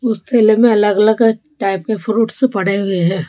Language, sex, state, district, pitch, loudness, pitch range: Hindi, female, Rajasthan, Jaipur, 220 Hz, -14 LUFS, 195-230 Hz